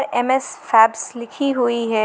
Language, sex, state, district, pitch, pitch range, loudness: Hindi, female, Jharkhand, Garhwa, 235 Hz, 225-255 Hz, -18 LUFS